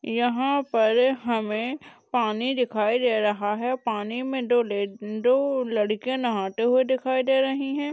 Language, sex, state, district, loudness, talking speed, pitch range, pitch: Hindi, female, Uttar Pradesh, Jalaun, -24 LUFS, 150 wpm, 220-260 Hz, 245 Hz